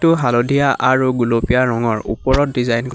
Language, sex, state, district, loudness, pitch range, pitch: Assamese, male, Assam, Hailakandi, -16 LUFS, 115-135 Hz, 125 Hz